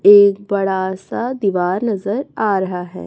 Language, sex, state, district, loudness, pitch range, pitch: Hindi, female, Chhattisgarh, Raipur, -17 LUFS, 190-205 Hz, 200 Hz